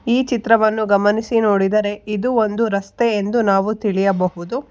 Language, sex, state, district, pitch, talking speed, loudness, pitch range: Kannada, female, Karnataka, Bangalore, 215 Hz, 125 wpm, -18 LUFS, 200-230 Hz